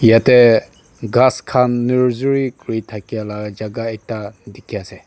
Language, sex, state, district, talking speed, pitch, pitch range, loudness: Nagamese, male, Nagaland, Dimapur, 130 wpm, 115 Hz, 110-125 Hz, -16 LUFS